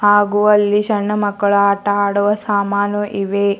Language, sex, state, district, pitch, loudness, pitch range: Kannada, female, Karnataka, Bidar, 205 Hz, -16 LUFS, 200-205 Hz